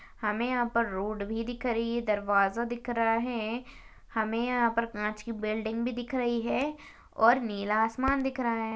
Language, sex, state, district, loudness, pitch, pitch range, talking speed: Hindi, female, Maharashtra, Aurangabad, -30 LUFS, 230 Hz, 220-245 Hz, 190 wpm